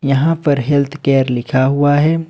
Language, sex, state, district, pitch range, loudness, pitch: Hindi, male, Jharkhand, Ranchi, 135-150 Hz, -14 LUFS, 145 Hz